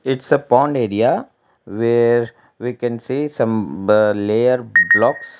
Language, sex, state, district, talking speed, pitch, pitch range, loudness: English, male, Gujarat, Valsad, 135 wpm, 120 Hz, 105-130 Hz, -16 LUFS